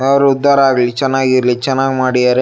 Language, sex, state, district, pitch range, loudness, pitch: Kannada, male, Karnataka, Shimoga, 125-135 Hz, -13 LUFS, 135 Hz